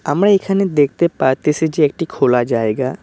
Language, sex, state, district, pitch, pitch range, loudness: Bengali, male, West Bengal, Cooch Behar, 150 Hz, 130-175 Hz, -16 LUFS